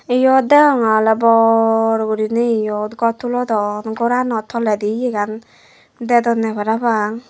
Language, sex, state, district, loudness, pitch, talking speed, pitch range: Chakma, female, Tripura, West Tripura, -16 LUFS, 225 Hz, 105 wpm, 220-240 Hz